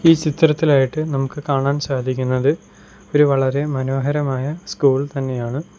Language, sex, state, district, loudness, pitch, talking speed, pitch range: Malayalam, male, Kerala, Kollam, -19 LUFS, 140 Hz, 105 wpm, 135-150 Hz